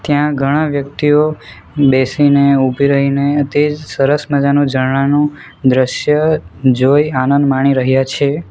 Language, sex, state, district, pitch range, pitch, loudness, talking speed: Gujarati, male, Gujarat, Valsad, 135-145 Hz, 140 Hz, -13 LUFS, 125 wpm